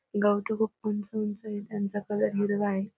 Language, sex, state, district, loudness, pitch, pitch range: Marathi, female, Maharashtra, Aurangabad, -30 LUFS, 205 Hz, 205-215 Hz